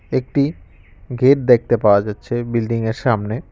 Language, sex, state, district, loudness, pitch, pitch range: Bengali, male, West Bengal, Cooch Behar, -17 LUFS, 115 Hz, 105-125 Hz